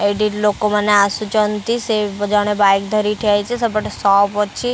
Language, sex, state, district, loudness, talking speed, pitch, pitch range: Odia, female, Odisha, Khordha, -16 LUFS, 150 wpm, 210 Hz, 205-215 Hz